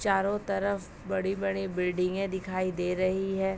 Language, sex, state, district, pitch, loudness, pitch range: Hindi, female, Uttar Pradesh, Ghazipur, 190 Hz, -30 LUFS, 185-195 Hz